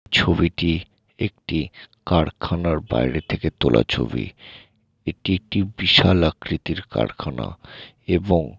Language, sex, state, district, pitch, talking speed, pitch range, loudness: Bengali, male, West Bengal, Jalpaiguri, 90 Hz, 105 wpm, 80-100 Hz, -21 LUFS